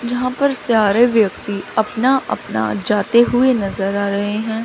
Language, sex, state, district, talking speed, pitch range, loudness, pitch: Hindi, female, Chandigarh, Chandigarh, 155 wpm, 200-245 Hz, -17 LUFS, 220 Hz